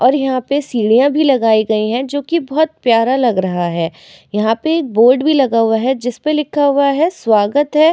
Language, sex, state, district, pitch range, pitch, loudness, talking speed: Hindi, female, Uttar Pradesh, Etah, 225-290 Hz, 260 Hz, -14 LUFS, 210 wpm